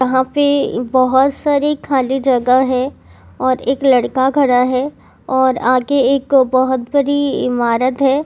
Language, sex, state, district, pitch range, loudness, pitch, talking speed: Hindi, female, Jharkhand, Jamtara, 255-280 Hz, -15 LUFS, 260 Hz, 140 wpm